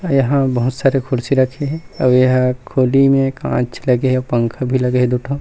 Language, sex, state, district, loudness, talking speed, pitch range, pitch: Chhattisgarhi, male, Chhattisgarh, Rajnandgaon, -16 LUFS, 220 wpm, 125-135 Hz, 130 Hz